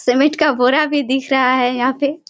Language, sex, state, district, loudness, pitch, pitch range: Hindi, female, Bihar, Kishanganj, -15 LUFS, 265 Hz, 255-290 Hz